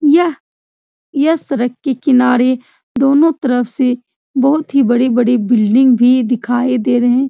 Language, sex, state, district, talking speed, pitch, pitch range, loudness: Hindi, female, Bihar, Supaul, 140 wpm, 255 Hz, 245-280 Hz, -13 LUFS